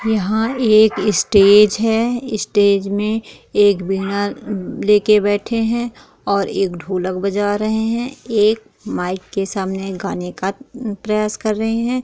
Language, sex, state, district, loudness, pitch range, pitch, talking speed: Hindi, female, Bihar, East Champaran, -17 LUFS, 195-225 Hz, 210 Hz, 140 wpm